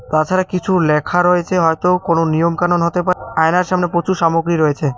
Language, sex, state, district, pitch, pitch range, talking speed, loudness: Bengali, male, West Bengal, Cooch Behar, 170 Hz, 160-180 Hz, 180 wpm, -15 LUFS